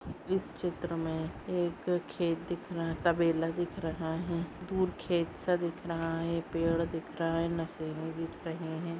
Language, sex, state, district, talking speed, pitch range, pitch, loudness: Hindi, female, Maharashtra, Aurangabad, 165 wpm, 165-175 Hz, 165 Hz, -34 LUFS